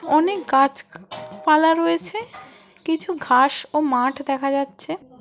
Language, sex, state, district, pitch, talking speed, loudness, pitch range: Bengali, female, West Bengal, Jhargram, 280 Hz, 115 wpm, -20 LUFS, 270-325 Hz